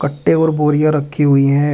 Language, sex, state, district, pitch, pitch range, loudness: Hindi, male, Uttar Pradesh, Shamli, 145 Hz, 145-150 Hz, -14 LUFS